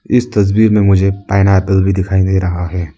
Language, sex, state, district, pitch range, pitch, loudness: Hindi, male, Arunachal Pradesh, Lower Dibang Valley, 95-100 Hz, 95 Hz, -12 LUFS